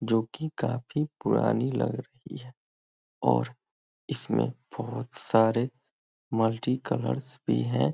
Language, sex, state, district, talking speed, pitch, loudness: Hindi, male, Bihar, Muzaffarpur, 115 wpm, 115 Hz, -29 LUFS